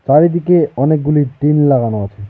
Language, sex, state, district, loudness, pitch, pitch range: Bengali, male, West Bengal, Alipurduar, -13 LUFS, 145 Hz, 130-155 Hz